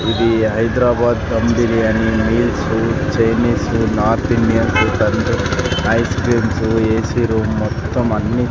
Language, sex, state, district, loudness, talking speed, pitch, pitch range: Telugu, male, Andhra Pradesh, Sri Satya Sai, -16 LUFS, 90 wpm, 115 Hz, 110-115 Hz